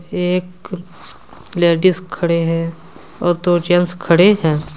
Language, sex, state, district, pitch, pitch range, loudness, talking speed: Hindi, male, Jharkhand, Deoghar, 175 Hz, 170-180 Hz, -16 LUFS, 115 wpm